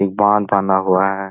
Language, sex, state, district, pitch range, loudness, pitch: Hindi, male, Bihar, Jahanabad, 95-100 Hz, -16 LUFS, 95 Hz